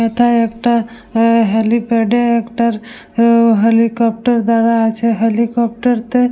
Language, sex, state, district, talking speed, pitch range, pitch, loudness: Bengali, female, West Bengal, Dakshin Dinajpur, 95 wpm, 225-235 Hz, 230 Hz, -14 LUFS